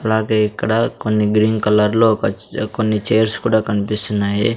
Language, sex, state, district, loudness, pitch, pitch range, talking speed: Telugu, male, Andhra Pradesh, Sri Satya Sai, -17 LUFS, 110 Hz, 105-110 Hz, 145 wpm